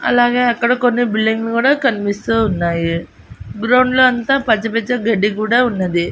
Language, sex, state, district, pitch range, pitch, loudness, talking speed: Telugu, female, Andhra Pradesh, Annamaya, 205-245 Hz, 230 Hz, -15 LUFS, 135 wpm